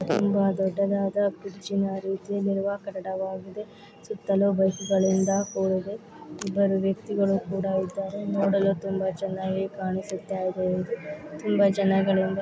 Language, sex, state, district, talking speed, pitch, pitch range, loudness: Kannada, female, Karnataka, Belgaum, 95 wpm, 195 Hz, 190-200 Hz, -26 LUFS